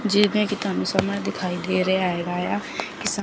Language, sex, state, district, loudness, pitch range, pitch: Hindi, female, Chandigarh, Chandigarh, -23 LUFS, 180-205 Hz, 190 Hz